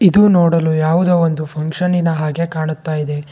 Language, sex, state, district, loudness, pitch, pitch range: Kannada, male, Karnataka, Bangalore, -15 LUFS, 160 Hz, 155-175 Hz